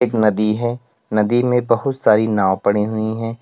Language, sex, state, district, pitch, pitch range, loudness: Hindi, male, Uttar Pradesh, Lalitpur, 110 Hz, 105-120 Hz, -18 LUFS